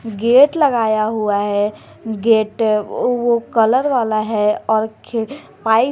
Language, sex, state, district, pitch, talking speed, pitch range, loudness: Hindi, female, Jharkhand, Garhwa, 225 Hz, 130 wpm, 215-240 Hz, -16 LUFS